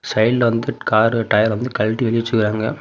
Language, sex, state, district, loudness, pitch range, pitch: Tamil, male, Tamil Nadu, Namakkal, -18 LUFS, 110-120 Hz, 115 Hz